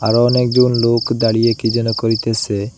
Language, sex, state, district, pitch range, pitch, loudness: Bengali, male, Assam, Hailakandi, 110-120 Hz, 115 Hz, -15 LUFS